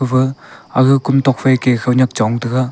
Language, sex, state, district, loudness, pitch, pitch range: Wancho, male, Arunachal Pradesh, Longding, -15 LUFS, 130 Hz, 125-130 Hz